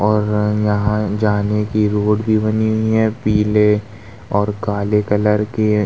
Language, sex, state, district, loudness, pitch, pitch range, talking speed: Hindi, male, Uttar Pradesh, Muzaffarnagar, -17 LUFS, 105 Hz, 105-110 Hz, 155 wpm